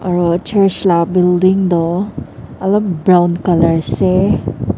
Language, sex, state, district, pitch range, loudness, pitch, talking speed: Nagamese, female, Nagaland, Dimapur, 170-190 Hz, -14 LUFS, 180 Hz, 115 wpm